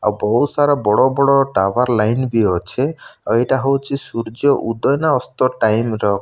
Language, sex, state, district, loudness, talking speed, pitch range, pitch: Odia, male, Odisha, Malkangiri, -17 LUFS, 185 wpm, 110-140 Hz, 125 Hz